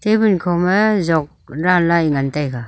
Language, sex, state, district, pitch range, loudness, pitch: Wancho, female, Arunachal Pradesh, Longding, 150-195 Hz, -16 LUFS, 170 Hz